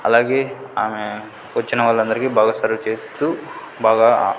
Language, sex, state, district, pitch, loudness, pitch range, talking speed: Telugu, male, Andhra Pradesh, Sri Satya Sai, 110 Hz, -19 LUFS, 110-115 Hz, 110 wpm